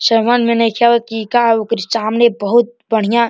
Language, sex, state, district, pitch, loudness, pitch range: Bhojpuri, male, Uttar Pradesh, Deoria, 230 Hz, -14 LUFS, 225-235 Hz